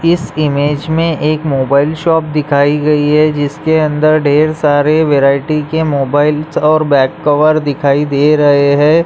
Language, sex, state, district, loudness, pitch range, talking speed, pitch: Hindi, male, Chhattisgarh, Raigarh, -11 LUFS, 145-155 Hz, 160 wpm, 150 Hz